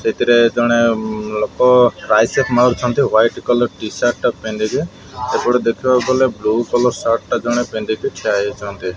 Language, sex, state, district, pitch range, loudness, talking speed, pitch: Odia, male, Odisha, Malkangiri, 110-125 Hz, -16 LUFS, 140 wpm, 120 Hz